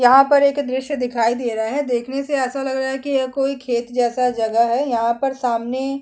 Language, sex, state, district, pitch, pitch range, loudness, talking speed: Hindi, female, Chhattisgarh, Kabirdham, 260 Hz, 240-275 Hz, -19 LUFS, 230 wpm